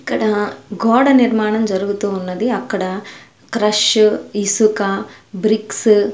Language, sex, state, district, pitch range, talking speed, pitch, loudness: Telugu, female, Andhra Pradesh, Sri Satya Sai, 200-220 Hz, 100 wpm, 210 Hz, -16 LUFS